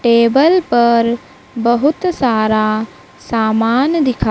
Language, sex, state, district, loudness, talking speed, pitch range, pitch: Hindi, female, Madhya Pradesh, Dhar, -14 LUFS, 85 wpm, 225-275 Hz, 235 Hz